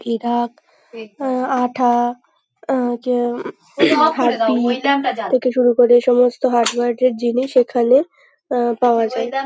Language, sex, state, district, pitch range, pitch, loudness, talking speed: Bengali, female, West Bengal, North 24 Parganas, 240-260 Hz, 245 Hz, -17 LUFS, 110 wpm